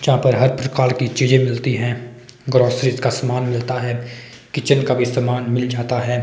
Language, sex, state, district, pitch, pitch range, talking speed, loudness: Hindi, male, Himachal Pradesh, Shimla, 125 Hz, 120-130 Hz, 195 wpm, -18 LUFS